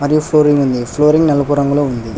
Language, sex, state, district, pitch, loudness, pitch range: Telugu, male, Telangana, Hyderabad, 145 Hz, -13 LUFS, 135-150 Hz